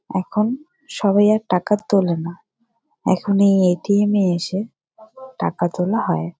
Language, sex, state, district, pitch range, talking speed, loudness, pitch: Bengali, female, West Bengal, Jalpaiguri, 180-215 Hz, 150 wpm, -19 LUFS, 200 Hz